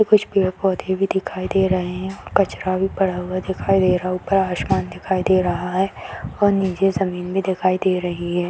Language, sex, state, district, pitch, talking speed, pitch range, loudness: Hindi, female, Bihar, Madhepura, 185 Hz, 220 wpm, 180-195 Hz, -20 LUFS